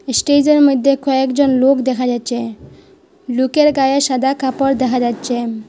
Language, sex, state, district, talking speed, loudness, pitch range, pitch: Bengali, female, Assam, Hailakandi, 135 wpm, -15 LUFS, 250-280 Hz, 265 Hz